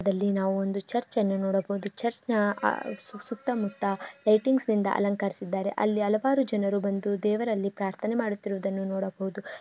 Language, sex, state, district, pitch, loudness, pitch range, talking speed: Kannada, female, Karnataka, Dharwad, 200 Hz, -28 LUFS, 195-215 Hz, 130 wpm